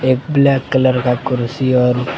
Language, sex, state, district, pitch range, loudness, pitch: Hindi, male, Maharashtra, Mumbai Suburban, 125-135 Hz, -15 LUFS, 130 Hz